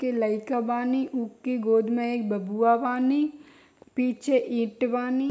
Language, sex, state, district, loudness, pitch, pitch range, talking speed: Bhojpuri, female, Bihar, East Champaran, -26 LUFS, 245 Hz, 235-260 Hz, 135 wpm